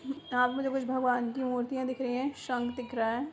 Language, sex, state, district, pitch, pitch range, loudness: Hindi, female, Jharkhand, Sahebganj, 255 Hz, 245-265 Hz, -32 LUFS